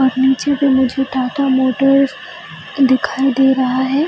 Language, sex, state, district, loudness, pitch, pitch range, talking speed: Hindi, female, Bihar, Jahanabad, -15 LUFS, 270 Hz, 260-280 Hz, 160 wpm